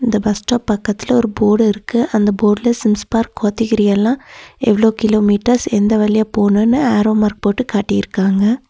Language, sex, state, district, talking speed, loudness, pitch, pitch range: Tamil, female, Tamil Nadu, Nilgiris, 145 wpm, -15 LUFS, 215 Hz, 210-230 Hz